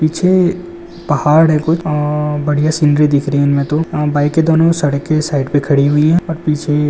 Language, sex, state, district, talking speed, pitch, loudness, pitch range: Hindi, male, Andhra Pradesh, Visakhapatnam, 200 wpm, 150 Hz, -13 LUFS, 145-160 Hz